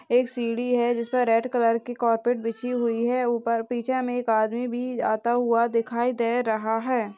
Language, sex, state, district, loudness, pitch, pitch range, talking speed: Hindi, female, Maharashtra, Chandrapur, -24 LUFS, 235 Hz, 230-245 Hz, 190 wpm